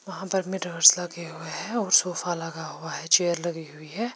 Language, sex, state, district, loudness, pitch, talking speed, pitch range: Hindi, female, Chandigarh, Chandigarh, -24 LUFS, 175 Hz, 230 wpm, 165-190 Hz